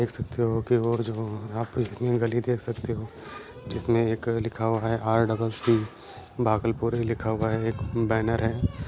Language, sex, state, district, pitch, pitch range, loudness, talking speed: Hindi, male, Bihar, Bhagalpur, 115 Hz, 110-120 Hz, -27 LUFS, 180 wpm